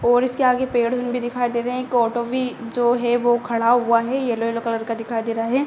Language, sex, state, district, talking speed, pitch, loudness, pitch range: Hindi, female, Bihar, Madhepura, 285 wpm, 240 Hz, -21 LUFS, 230-245 Hz